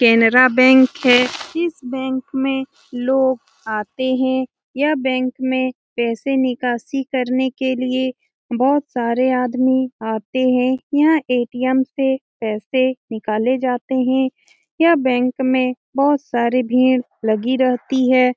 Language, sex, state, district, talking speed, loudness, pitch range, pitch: Hindi, female, Bihar, Lakhisarai, 125 wpm, -18 LUFS, 250-265 Hz, 255 Hz